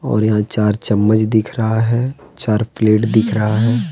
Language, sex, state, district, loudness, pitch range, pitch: Hindi, male, Jharkhand, Deoghar, -16 LUFS, 105-115 Hz, 110 Hz